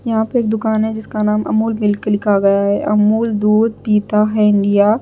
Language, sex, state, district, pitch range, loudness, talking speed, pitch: Hindi, female, Punjab, Pathankot, 210-220 Hz, -15 LUFS, 215 wpm, 210 Hz